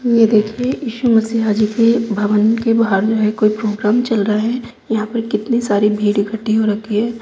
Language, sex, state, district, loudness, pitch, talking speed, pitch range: Hindi, female, Bihar, Purnia, -16 LUFS, 220 Hz, 210 wpm, 210-230 Hz